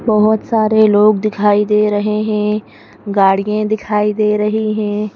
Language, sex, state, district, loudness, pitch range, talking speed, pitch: Hindi, female, Madhya Pradesh, Bhopal, -14 LUFS, 210-215 Hz, 140 wpm, 210 Hz